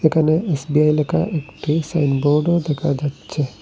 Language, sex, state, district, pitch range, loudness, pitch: Bengali, male, Assam, Hailakandi, 145-160 Hz, -19 LUFS, 150 Hz